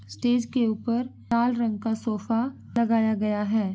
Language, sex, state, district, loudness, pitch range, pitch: Hindi, female, Uttar Pradesh, Ghazipur, -26 LUFS, 215-235 Hz, 225 Hz